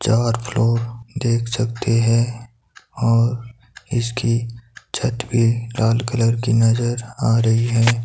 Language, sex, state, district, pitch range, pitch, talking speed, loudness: Hindi, male, Himachal Pradesh, Shimla, 115-120 Hz, 115 Hz, 120 wpm, -19 LUFS